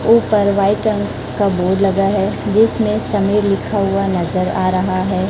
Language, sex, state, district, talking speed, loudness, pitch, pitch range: Hindi, female, Chhattisgarh, Raipur, 170 wpm, -16 LUFS, 195 Hz, 185-210 Hz